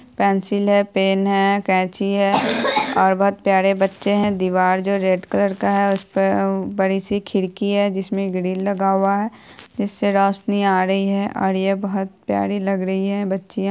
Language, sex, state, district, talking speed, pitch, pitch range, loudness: Hindi, female, Bihar, Saharsa, 195 wpm, 195 Hz, 190-200 Hz, -19 LUFS